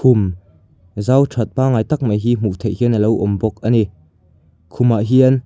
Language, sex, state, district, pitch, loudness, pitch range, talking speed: Mizo, male, Mizoram, Aizawl, 110 Hz, -17 LUFS, 95-120 Hz, 185 wpm